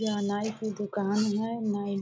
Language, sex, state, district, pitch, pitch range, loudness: Hindi, female, Bihar, Purnia, 210 Hz, 205-220 Hz, -30 LUFS